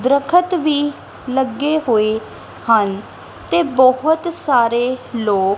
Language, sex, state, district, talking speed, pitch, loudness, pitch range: Punjabi, female, Punjab, Kapurthala, 105 wpm, 260 Hz, -17 LUFS, 225-305 Hz